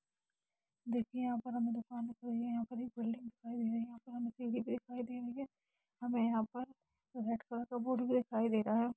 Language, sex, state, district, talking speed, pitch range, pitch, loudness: Hindi, female, Jharkhand, Jamtara, 165 wpm, 230-245 Hz, 240 Hz, -39 LUFS